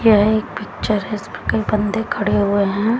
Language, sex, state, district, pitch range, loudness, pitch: Hindi, female, Haryana, Jhajjar, 200-215 Hz, -19 LUFS, 210 Hz